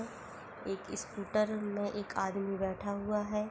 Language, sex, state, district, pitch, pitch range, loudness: Hindi, female, Chhattisgarh, Korba, 205 Hz, 200-210 Hz, -36 LUFS